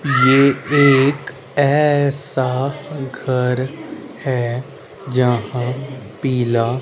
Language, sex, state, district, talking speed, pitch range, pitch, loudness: Hindi, male, Haryana, Rohtak, 60 wpm, 125-140 Hz, 135 Hz, -17 LUFS